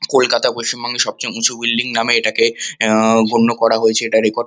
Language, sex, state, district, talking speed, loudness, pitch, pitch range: Bengali, male, West Bengal, Kolkata, 185 wpm, -15 LUFS, 115 Hz, 110-115 Hz